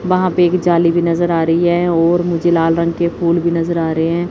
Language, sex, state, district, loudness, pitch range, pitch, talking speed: Hindi, female, Chandigarh, Chandigarh, -15 LUFS, 170-175 Hz, 170 Hz, 280 wpm